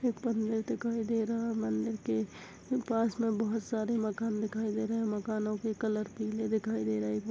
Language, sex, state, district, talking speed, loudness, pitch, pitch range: Hindi, female, Chhattisgarh, Balrampur, 180 wpm, -33 LUFS, 220 Hz, 215-225 Hz